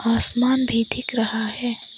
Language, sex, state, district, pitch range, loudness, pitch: Hindi, female, Arunachal Pradesh, Papum Pare, 225-250 Hz, -20 LUFS, 230 Hz